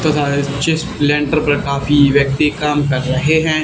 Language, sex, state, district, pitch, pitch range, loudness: Hindi, male, Haryana, Charkhi Dadri, 145 Hz, 140-155 Hz, -15 LUFS